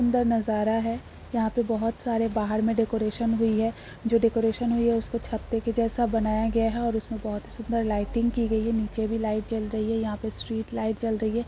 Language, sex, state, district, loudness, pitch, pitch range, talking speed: Hindi, female, Uttar Pradesh, Jalaun, -27 LUFS, 225 Hz, 220-230 Hz, 245 wpm